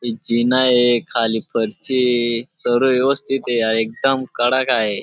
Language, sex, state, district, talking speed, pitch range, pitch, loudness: Marathi, male, Maharashtra, Dhule, 145 wpm, 115-130 Hz, 120 Hz, -18 LUFS